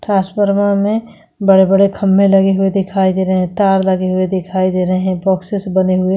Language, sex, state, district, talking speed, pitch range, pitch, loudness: Hindi, female, Chhattisgarh, Korba, 195 wpm, 185-200 Hz, 190 Hz, -14 LUFS